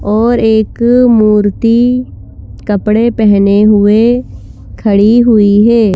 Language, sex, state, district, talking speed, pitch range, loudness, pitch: Hindi, female, Madhya Pradesh, Bhopal, 90 wpm, 205-235 Hz, -9 LUFS, 215 Hz